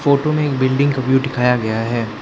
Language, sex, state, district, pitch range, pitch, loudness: Hindi, male, Arunachal Pradesh, Lower Dibang Valley, 120-140 Hz, 130 Hz, -17 LUFS